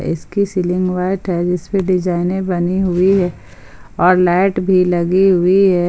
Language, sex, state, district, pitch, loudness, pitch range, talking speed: Hindi, male, Jharkhand, Ranchi, 180 Hz, -15 LUFS, 175-190 Hz, 165 wpm